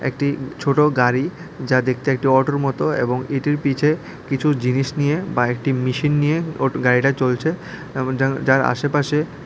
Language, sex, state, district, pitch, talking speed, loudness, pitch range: Bengali, male, Tripura, West Tripura, 135 Hz, 160 wpm, -19 LUFS, 130-150 Hz